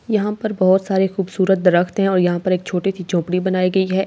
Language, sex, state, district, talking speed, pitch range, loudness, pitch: Hindi, female, Delhi, New Delhi, 295 wpm, 180-195 Hz, -18 LUFS, 190 Hz